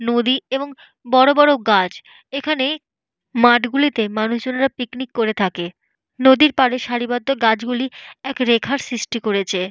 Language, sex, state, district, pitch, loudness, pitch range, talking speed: Bengali, female, Jharkhand, Jamtara, 245 Hz, -18 LUFS, 225-270 Hz, 125 wpm